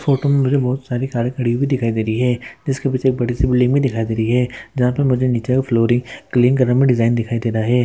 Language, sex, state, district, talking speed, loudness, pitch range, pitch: Hindi, male, Andhra Pradesh, Guntur, 120 wpm, -18 LUFS, 120-130 Hz, 125 Hz